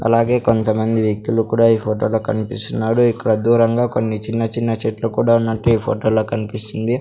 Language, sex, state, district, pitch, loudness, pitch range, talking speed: Telugu, male, Andhra Pradesh, Sri Satya Sai, 115 Hz, -18 LUFS, 110-115 Hz, 170 wpm